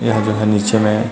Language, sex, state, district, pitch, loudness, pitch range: Chhattisgarhi, male, Chhattisgarh, Rajnandgaon, 110 Hz, -16 LUFS, 105-110 Hz